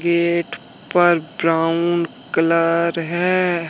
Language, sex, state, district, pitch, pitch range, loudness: Hindi, male, Jharkhand, Deoghar, 170 Hz, 165-175 Hz, -18 LUFS